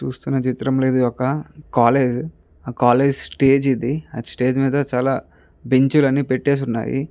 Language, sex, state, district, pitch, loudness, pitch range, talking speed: Telugu, male, Andhra Pradesh, Guntur, 135 Hz, -19 LUFS, 125-140 Hz, 170 wpm